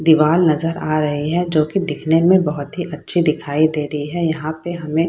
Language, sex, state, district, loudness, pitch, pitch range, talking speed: Hindi, female, Bihar, Saharsa, -18 LUFS, 155 Hz, 150-170 Hz, 235 wpm